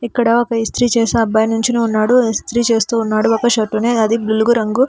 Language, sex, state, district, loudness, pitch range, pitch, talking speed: Telugu, female, Telangana, Hyderabad, -15 LUFS, 220-235 Hz, 230 Hz, 185 wpm